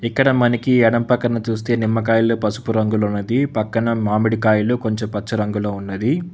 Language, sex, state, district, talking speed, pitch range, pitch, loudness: Telugu, male, Telangana, Hyderabad, 140 wpm, 110-120 Hz, 115 Hz, -18 LUFS